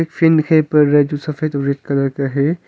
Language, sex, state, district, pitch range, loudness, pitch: Hindi, male, Arunachal Pradesh, Longding, 140-155 Hz, -16 LUFS, 150 Hz